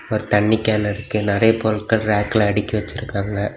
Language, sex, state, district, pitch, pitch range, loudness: Tamil, male, Tamil Nadu, Kanyakumari, 105 Hz, 105-110 Hz, -19 LUFS